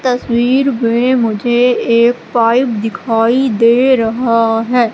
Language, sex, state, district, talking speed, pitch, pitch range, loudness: Hindi, female, Madhya Pradesh, Katni, 110 wpm, 240 Hz, 230-250 Hz, -12 LUFS